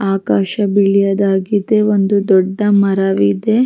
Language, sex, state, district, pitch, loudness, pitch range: Kannada, female, Karnataka, Mysore, 200 Hz, -14 LUFS, 195-205 Hz